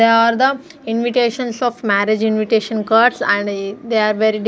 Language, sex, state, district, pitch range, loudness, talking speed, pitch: English, female, Punjab, Fazilka, 215-240 Hz, -16 LUFS, 175 wpm, 225 Hz